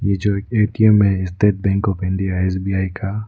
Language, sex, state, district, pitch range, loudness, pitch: Hindi, male, Arunachal Pradesh, Lower Dibang Valley, 95-105 Hz, -18 LUFS, 100 Hz